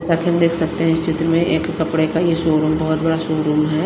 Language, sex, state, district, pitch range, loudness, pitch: Hindi, female, Himachal Pradesh, Shimla, 155-165 Hz, -18 LUFS, 160 Hz